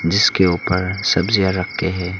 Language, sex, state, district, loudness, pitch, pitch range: Hindi, male, Arunachal Pradesh, Longding, -17 LUFS, 95 Hz, 90-95 Hz